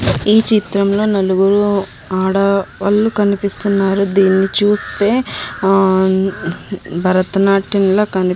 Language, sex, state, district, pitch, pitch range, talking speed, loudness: Telugu, female, Andhra Pradesh, Anantapur, 195 Hz, 190-205 Hz, 80 wpm, -14 LUFS